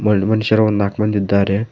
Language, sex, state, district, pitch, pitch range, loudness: Kannada, male, Karnataka, Koppal, 105 Hz, 100-110 Hz, -16 LUFS